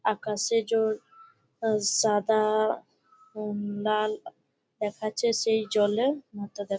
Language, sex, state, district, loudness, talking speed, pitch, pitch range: Bengali, female, West Bengal, Malda, -27 LUFS, 115 wpm, 215 Hz, 210-225 Hz